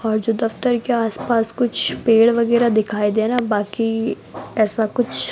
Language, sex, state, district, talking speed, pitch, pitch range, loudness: Hindi, female, Rajasthan, Bikaner, 170 wpm, 225 Hz, 220-235 Hz, -18 LUFS